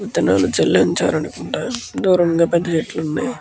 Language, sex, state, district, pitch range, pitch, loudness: Telugu, male, Andhra Pradesh, Guntur, 160-180 Hz, 170 Hz, -18 LUFS